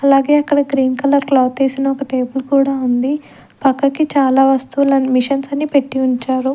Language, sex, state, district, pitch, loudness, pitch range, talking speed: Telugu, female, Andhra Pradesh, Sri Satya Sai, 275 Hz, -15 LUFS, 260-280 Hz, 155 wpm